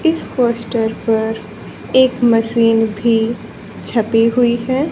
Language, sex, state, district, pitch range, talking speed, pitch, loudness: Hindi, female, Haryana, Charkhi Dadri, 225-245 Hz, 110 wpm, 230 Hz, -15 LUFS